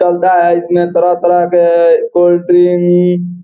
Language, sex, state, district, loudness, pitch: Hindi, male, Bihar, Gopalganj, -10 LUFS, 175 Hz